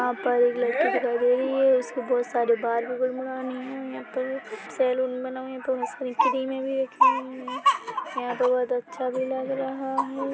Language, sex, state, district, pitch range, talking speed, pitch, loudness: Hindi, male, Chhattisgarh, Bilaspur, 250-270 Hz, 190 wpm, 260 Hz, -26 LUFS